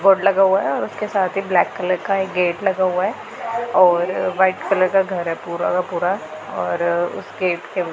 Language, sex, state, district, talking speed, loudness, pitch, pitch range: Hindi, female, Punjab, Pathankot, 220 wpm, -19 LUFS, 185 Hz, 175-195 Hz